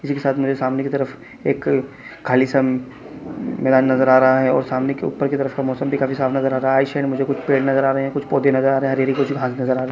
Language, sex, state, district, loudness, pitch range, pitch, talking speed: Hindi, male, Chhattisgarh, Kabirdham, -19 LUFS, 130-135 Hz, 135 Hz, 310 wpm